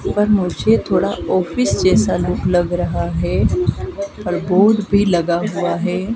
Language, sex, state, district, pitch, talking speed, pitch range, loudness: Hindi, female, Madhya Pradesh, Dhar, 180 Hz, 145 wpm, 170-200 Hz, -17 LUFS